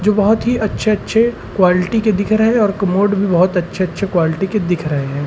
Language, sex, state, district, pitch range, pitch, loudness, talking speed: Hindi, male, Madhya Pradesh, Umaria, 180-215 Hz, 200 Hz, -15 LUFS, 205 wpm